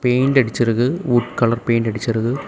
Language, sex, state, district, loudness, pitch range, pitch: Tamil, male, Tamil Nadu, Kanyakumari, -18 LUFS, 115-125 Hz, 120 Hz